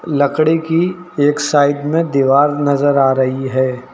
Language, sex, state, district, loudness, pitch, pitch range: Hindi, male, Uttar Pradesh, Lucknow, -14 LUFS, 145 Hz, 135-155 Hz